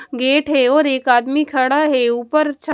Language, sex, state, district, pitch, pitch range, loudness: Hindi, female, Punjab, Kapurthala, 270 Hz, 255-300 Hz, -16 LUFS